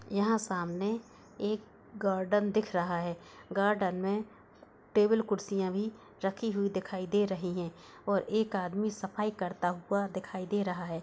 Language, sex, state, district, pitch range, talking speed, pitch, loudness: Hindi, female, Uttar Pradesh, Budaun, 185-210 Hz, 150 wpm, 200 Hz, -33 LUFS